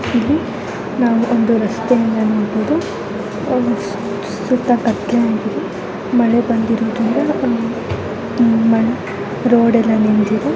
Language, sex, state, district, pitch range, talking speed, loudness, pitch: Kannada, female, Karnataka, Mysore, 215-235 Hz, 70 wpm, -16 LUFS, 230 Hz